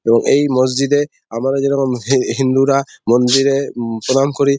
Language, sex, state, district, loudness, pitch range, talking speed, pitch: Bengali, male, West Bengal, Purulia, -15 LUFS, 125-140 Hz, 170 wpm, 135 Hz